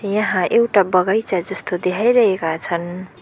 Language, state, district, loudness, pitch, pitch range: Nepali, West Bengal, Darjeeling, -18 LUFS, 190 Hz, 180-215 Hz